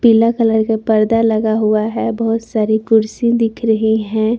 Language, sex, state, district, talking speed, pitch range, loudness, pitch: Hindi, female, Jharkhand, Palamu, 180 wpm, 220-230 Hz, -15 LUFS, 220 Hz